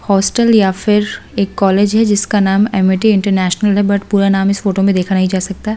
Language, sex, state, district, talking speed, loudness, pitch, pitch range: Hindi, female, Delhi, New Delhi, 220 wpm, -13 LUFS, 200 Hz, 195-210 Hz